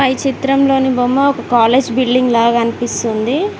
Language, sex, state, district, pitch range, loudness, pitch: Telugu, female, Telangana, Mahabubabad, 235-270 Hz, -14 LUFS, 255 Hz